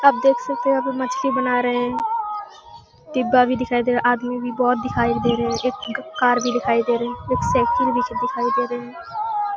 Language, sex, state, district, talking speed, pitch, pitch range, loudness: Hindi, female, Jharkhand, Sahebganj, 230 wpm, 250 Hz, 245-300 Hz, -21 LUFS